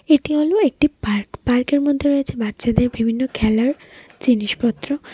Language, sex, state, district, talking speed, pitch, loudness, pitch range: Bengali, female, Tripura, West Tripura, 140 wpm, 255 Hz, -19 LUFS, 230-285 Hz